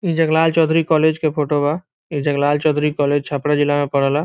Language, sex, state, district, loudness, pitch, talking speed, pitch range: Hindi, male, Bihar, Saran, -18 LUFS, 150 Hz, 210 wpm, 145-160 Hz